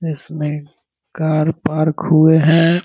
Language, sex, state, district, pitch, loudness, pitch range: Hindi, male, Bihar, Purnia, 160 Hz, -15 LUFS, 155-165 Hz